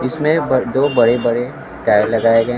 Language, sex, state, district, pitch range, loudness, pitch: Hindi, male, Bihar, Kaimur, 115-135 Hz, -15 LUFS, 125 Hz